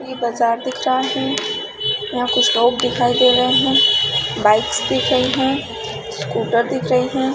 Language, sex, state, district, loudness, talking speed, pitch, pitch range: Hindi, female, Chhattisgarh, Balrampur, -17 LUFS, 180 wpm, 245 Hz, 230-260 Hz